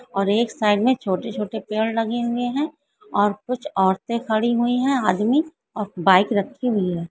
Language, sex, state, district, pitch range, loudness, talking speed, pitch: Hindi, female, Maharashtra, Solapur, 205-250 Hz, -21 LUFS, 175 wpm, 225 Hz